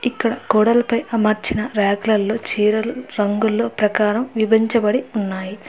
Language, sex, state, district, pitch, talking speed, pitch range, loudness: Telugu, female, Telangana, Hyderabad, 220 Hz, 95 wpm, 210-235 Hz, -19 LUFS